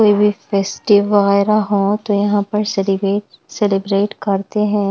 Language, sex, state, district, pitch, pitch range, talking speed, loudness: Hindi, female, Bihar, West Champaran, 205 Hz, 200-210 Hz, 145 wpm, -16 LUFS